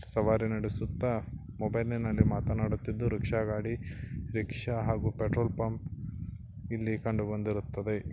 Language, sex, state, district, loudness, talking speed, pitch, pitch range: Kannada, male, Karnataka, Belgaum, -33 LUFS, 105 wpm, 110 Hz, 105-115 Hz